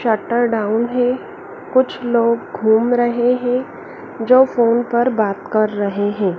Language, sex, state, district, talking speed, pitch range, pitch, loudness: Hindi, female, Madhya Pradesh, Dhar, 140 wpm, 215-245 Hz, 235 Hz, -17 LUFS